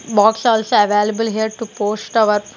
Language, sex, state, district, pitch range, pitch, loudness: English, female, Punjab, Kapurthala, 210-225 Hz, 220 Hz, -16 LUFS